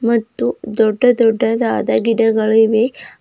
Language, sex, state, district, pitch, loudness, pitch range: Kannada, female, Karnataka, Bidar, 225 Hz, -15 LUFS, 220-235 Hz